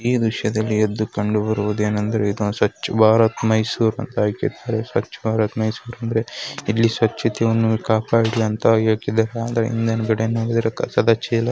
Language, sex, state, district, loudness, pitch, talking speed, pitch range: Kannada, male, Karnataka, Mysore, -20 LUFS, 110 Hz, 130 wpm, 110-115 Hz